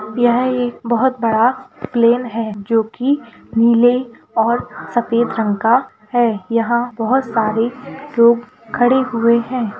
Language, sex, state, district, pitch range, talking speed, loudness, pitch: Hindi, female, Bihar, Muzaffarpur, 225-250 Hz, 135 wpm, -16 LUFS, 235 Hz